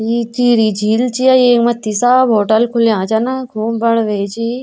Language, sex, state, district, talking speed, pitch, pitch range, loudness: Garhwali, female, Uttarakhand, Tehri Garhwal, 180 wpm, 230 Hz, 220-245 Hz, -13 LUFS